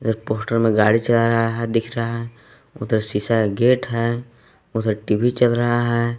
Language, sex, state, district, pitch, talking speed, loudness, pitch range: Hindi, male, Jharkhand, Palamu, 115 Hz, 185 wpm, -20 LUFS, 110-120 Hz